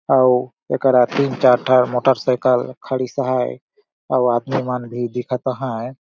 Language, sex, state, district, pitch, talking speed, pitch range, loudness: Surgujia, male, Chhattisgarh, Sarguja, 125 Hz, 150 wpm, 125-130 Hz, -18 LUFS